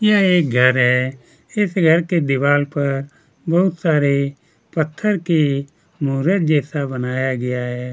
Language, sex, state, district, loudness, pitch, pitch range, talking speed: Hindi, male, Chhattisgarh, Kabirdham, -18 LUFS, 145 Hz, 135-170 Hz, 135 wpm